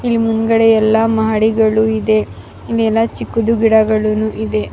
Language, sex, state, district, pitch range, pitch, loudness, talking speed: Kannada, female, Karnataka, Raichur, 215-225 Hz, 220 Hz, -14 LUFS, 90 wpm